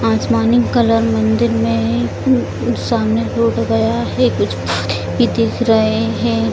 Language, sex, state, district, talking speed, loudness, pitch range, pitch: Hindi, female, Bihar, Jamui, 140 wpm, -16 LUFS, 110-115 Hz, 110 Hz